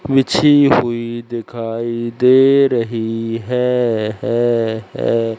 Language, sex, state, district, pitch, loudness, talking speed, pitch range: Hindi, male, Madhya Pradesh, Katni, 120 Hz, -16 LUFS, 65 wpm, 115-125 Hz